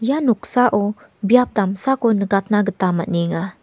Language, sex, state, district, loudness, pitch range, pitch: Garo, female, Meghalaya, West Garo Hills, -18 LUFS, 190-245 Hz, 205 Hz